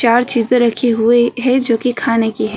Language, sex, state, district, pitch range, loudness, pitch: Hindi, female, Uttar Pradesh, Jyotiba Phule Nagar, 230-245 Hz, -14 LUFS, 235 Hz